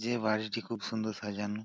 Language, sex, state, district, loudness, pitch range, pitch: Bengali, male, West Bengal, Purulia, -34 LUFS, 105-115 Hz, 110 Hz